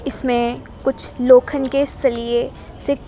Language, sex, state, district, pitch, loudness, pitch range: Hindi, female, Gujarat, Gandhinagar, 265 Hz, -18 LUFS, 240-275 Hz